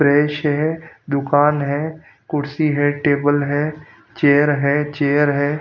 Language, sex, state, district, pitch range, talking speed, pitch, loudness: Hindi, male, Punjab, Pathankot, 145-150 Hz, 140 wpm, 145 Hz, -18 LUFS